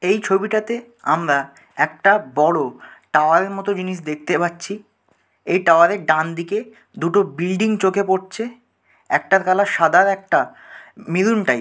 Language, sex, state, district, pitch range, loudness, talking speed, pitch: Bengali, male, West Bengal, Dakshin Dinajpur, 170-210 Hz, -18 LUFS, 135 wpm, 190 Hz